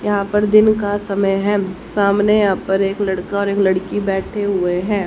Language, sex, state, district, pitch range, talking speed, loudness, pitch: Hindi, female, Haryana, Jhajjar, 195-205 Hz, 200 wpm, -17 LUFS, 200 Hz